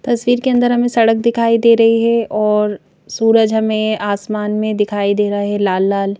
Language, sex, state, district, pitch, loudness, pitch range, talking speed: Hindi, female, Madhya Pradesh, Bhopal, 215 Hz, -15 LUFS, 205-230 Hz, 195 wpm